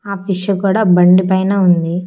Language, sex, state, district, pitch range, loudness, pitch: Telugu, female, Andhra Pradesh, Annamaya, 180-200 Hz, -13 LUFS, 190 Hz